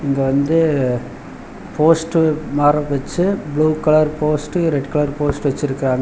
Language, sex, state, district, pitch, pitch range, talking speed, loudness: Tamil, male, Tamil Nadu, Chennai, 150 Hz, 140-155 Hz, 120 wpm, -17 LUFS